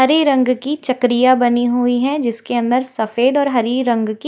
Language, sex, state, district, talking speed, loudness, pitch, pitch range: Hindi, female, Bihar, Kaimur, 195 wpm, -16 LUFS, 250 Hz, 240-260 Hz